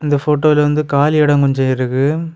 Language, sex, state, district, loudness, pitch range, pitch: Tamil, male, Tamil Nadu, Kanyakumari, -14 LUFS, 140-150 Hz, 145 Hz